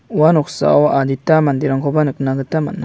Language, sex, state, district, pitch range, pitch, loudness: Garo, male, Meghalaya, West Garo Hills, 135-155 Hz, 145 Hz, -15 LUFS